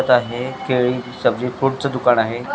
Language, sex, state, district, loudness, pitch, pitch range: Marathi, male, Maharashtra, Mumbai Suburban, -19 LUFS, 125 Hz, 120-130 Hz